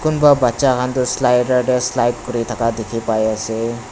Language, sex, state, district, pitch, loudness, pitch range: Nagamese, male, Nagaland, Dimapur, 120 Hz, -17 LUFS, 115-125 Hz